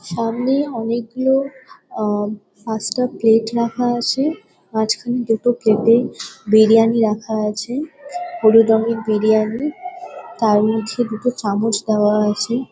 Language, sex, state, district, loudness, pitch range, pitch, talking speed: Bengali, female, West Bengal, Kolkata, -18 LUFS, 220-250 Hz, 225 Hz, 115 wpm